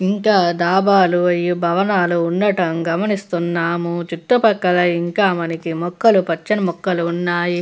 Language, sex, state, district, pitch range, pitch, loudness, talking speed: Telugu, female, Andhra Pradesh, Visakhapatnam, 170-195 Hz, 175 Hz, -17 LUFS, 110 wpm